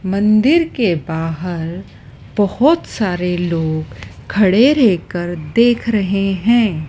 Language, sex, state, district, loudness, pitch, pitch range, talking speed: Hindi, female, Madhya Pradesh, Dhar, -16 LUFS, 185 Hz, 160-220 Hz, 105 wpm